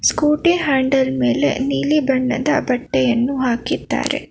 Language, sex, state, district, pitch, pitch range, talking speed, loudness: Kannada, female, Karnataka, Bangalore, 265 Hz, 245-300 Hz, 95 wpm, -18 LUFS